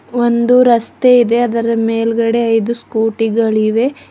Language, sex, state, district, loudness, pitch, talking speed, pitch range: Kannada, female, Karnataka, Bidar, -13 LUFS, 230 Hz, 115 wpm, 225-240 Hz